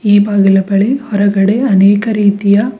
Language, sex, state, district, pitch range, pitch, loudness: Kannada, female, Karnataka, Bidar, 200-215 Hz, 205 Hz, -11 LUFS